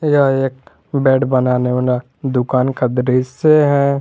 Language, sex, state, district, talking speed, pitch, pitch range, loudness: Hindi, male, Jharkhand, Garhwa, 135 wpm, 130 Hz, 125-140 Hz, -15 LUFS